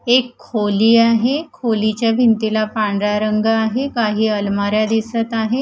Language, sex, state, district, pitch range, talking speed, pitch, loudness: Marathi, female, Maharashtra, Gondia, 215-235 Hz, 130 wpm, 225 Hz, -17 LUFS